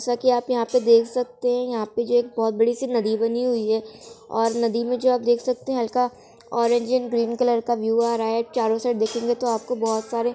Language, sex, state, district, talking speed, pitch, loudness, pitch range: Hindi, female, Bihar, East Champaran, 250 wpm, 235 Hz, -22 LUFS, 230-245 Hz